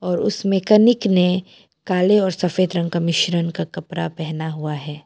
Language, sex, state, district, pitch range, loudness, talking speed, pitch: Hindi, female, Arunachal Pradesh, Papum Pare, 165-195 Hz, -19 LUFS, 180 wpm, 180 Hz